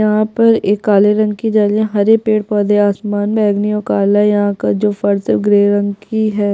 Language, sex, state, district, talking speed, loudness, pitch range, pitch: Hindi, female, Chhattisgarh, Jashpur, 255 wpm, -14 LUFS, 205-215 Hz, 210 Hz